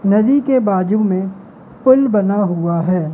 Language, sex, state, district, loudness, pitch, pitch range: Hindi, male, Madhya Pradesh, Katni, -15 LUFS, 200 Hz, 185-220 Hz